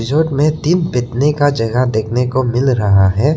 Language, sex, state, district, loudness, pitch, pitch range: Hindi, male, Arunachal Pradesh, Lower Dibang Valley, -14 LUFS, 130 Hz, 115-150 Hz